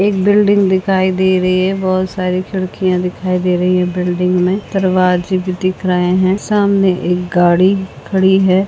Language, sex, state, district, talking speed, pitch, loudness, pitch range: Hindi, female, Goa, North and South Goa, 175 wpm, 185 Hz, -14 LUFS, 180-190 Hz